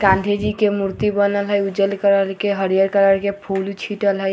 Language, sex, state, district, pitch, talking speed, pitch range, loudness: Hindi, female, Bihar, Vaishali, 200 Hz, 205 wpm, 195-205 Hz, -18 LUFS